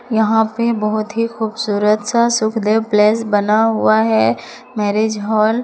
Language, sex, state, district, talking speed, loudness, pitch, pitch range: Hindi, female, Jharkhand, Palamu, 140 wpm, -16 LUFS, 215 Hz, 210-225 Hz